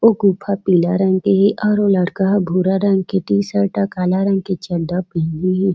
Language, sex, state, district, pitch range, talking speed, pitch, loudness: Chhattisgarhi, female, Chhattisgarh, Raigarh, 185-200 Hz, 210 wpm, 190 Hz, -17 LUFS